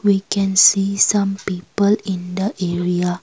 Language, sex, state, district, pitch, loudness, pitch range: English, female, Assam, Kamrup Metropolitan, 195 Hz, -17 LUFS, 180-200 Hz